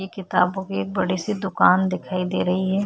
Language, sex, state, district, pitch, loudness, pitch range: Hindi, female, Chhattisgarh, Kabirdham, 185 Hz, -22 LUFS, 185-190 Hz